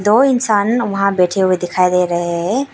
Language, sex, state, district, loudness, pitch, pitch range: Hindi, female, Arunachal Pradesh, Lower Dibang Valley, -15 LUFS, 195 Hz, 180-225 Hz